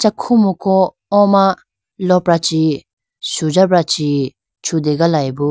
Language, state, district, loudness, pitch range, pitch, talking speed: Idu Mishmi, Arunachal Pradesh, Lower Dibang Valley, -15 LUFS, 155-190 Hz, 175 Hz, 85 wpm